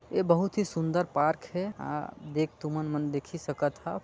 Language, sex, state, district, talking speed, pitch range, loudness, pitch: Chhattisgarhi, male, Chhattisgarh, Sarguja, 195 wpm, 150-175 Hz, -30 LUFS, 155 Hz